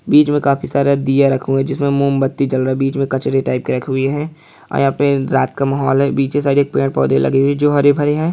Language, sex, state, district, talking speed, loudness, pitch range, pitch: Hindi, male, Bihar, Saharsa, 250 wpm, -15 LUFS, 135-145 Hz, 140 Hz